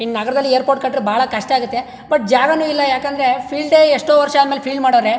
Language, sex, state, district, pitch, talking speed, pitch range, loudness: Kannada, male, Karnataka, Chamarajanagar, 270 Hz, 195 wpm, 255-290 Hz, -15 LUFS